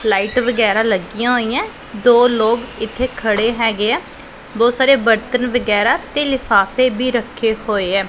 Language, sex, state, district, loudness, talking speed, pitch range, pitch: Punjabi, female, Punjab, Pathankot, -16 LUFS, 150 wpm, 215-245 Hz, 230 Hz